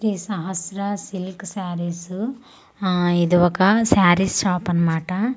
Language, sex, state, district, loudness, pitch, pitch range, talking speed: Telugu, female, Andhra Pradesh, Manyam, -21 LUFS, 185 Hz, 175-200 Hz, 125 wpm